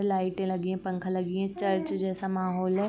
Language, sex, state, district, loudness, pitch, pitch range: Hindi, female, Uttar Pradesh, Varanasi, -30 LUFS, 190 Hz, 185-190 Hz